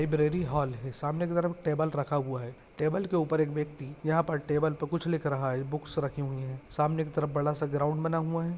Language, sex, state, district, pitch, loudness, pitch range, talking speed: Hindi, male, Maharashtra, Pune, 150 Hz, -31 LUFS, 145-160 Hz, 240 wpm